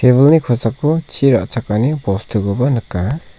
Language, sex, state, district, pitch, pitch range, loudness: Garo, male, Meghalaya, South Garo Hills, 125 Hz, 110-140 Hz, -15 LUFS